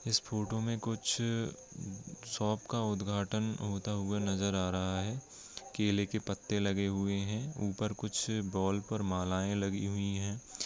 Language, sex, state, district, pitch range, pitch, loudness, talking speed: Hindi, male, Bihar, Saharsa, 100-110 Hz, 105 Hz, -35 LUFS, 165 wpm